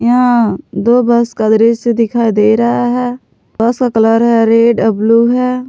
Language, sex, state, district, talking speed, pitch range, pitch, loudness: Hindi, female, Jharkhand, Palamu, 180 wpm, 225-245 Hz, 235 Hz, -11 LUFS